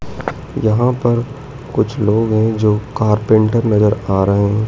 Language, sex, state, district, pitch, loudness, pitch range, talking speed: Hindi, male, Madhya Pradesh, Dhar, 110 Hz, -15 LUFS, 105-120 Hz, 130 wpm